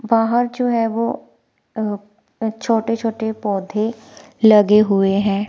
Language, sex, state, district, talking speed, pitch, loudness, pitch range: Hindi, female, Himachal Pradesh, Shimla, 130 wpm, 220 Hz, -18 LUFS, 210-230 Hz